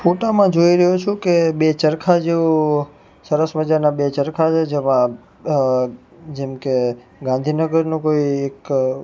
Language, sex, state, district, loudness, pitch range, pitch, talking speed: Gujarati, male, Gujarat, Gandhinagar, -18 LUFS, 140-165 Hz, 155 Hz, 135 wpm